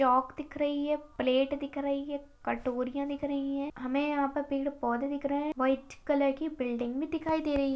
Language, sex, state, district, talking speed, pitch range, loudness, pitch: Hindi, female, Chhattisgarh, Balrampur, 215 wpm, 265-290 Hz, -32 LUFS, 280 Hz